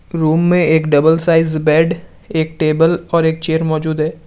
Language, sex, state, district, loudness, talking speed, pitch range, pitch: Hindi, male, Assam, Kamrup Metropolitan, -14 LUFS, 185 wpm, 155-165 Hz, 160 Hz